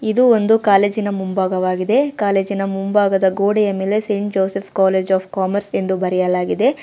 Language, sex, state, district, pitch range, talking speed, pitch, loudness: Kannada, female, Karnataka, Bangalore, 190-205 Hz, 130 wpm, 195 Hz, -17 LUFS